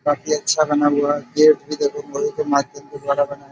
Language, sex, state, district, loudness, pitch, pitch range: Hindi, male, Uttar Pradesh, Budaun, -19 LUFS, 145 Hz, 140-155 Hz